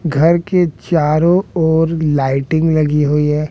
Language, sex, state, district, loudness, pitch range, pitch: Hindi, male, Bihar, West Champaran, -14 LUFS, 150-165 Hz, 160 Hz